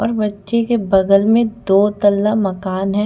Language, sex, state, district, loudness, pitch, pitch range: Hindi, female, Chhattisgarh, Bastar, -16 LUFS, 205 Hz, 195-220 Hz